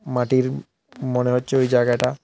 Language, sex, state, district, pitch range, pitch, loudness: Bengali, male, Tripura, South Tripura, 125-130 Hz, 125 Hz, -20 LUFS